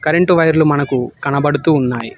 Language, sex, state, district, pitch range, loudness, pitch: Telugu, male, Telangana, Hyderabad, 135-160 Hz, -14 LUFS, 145 Hz